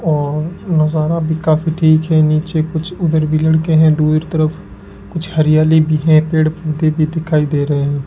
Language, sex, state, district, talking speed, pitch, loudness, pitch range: Hindi, male, Rajasthan, Bikaner, 185 wpm, 155 Hz, -14 LUFS, 155-160 Hz